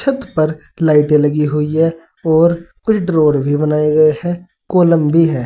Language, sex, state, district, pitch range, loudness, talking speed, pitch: Hindi, male, Uttar Pradesh, Saharanpur, 150-170 Hz, -14 LUFS, 175 wpm, 160 Hz